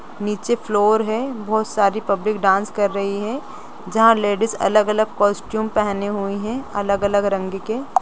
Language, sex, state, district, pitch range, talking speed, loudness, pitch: Hindi, female, Bihar, Gopalganj, 200-220 Hz, 165 wpm, -20 LUFS, 210 Hz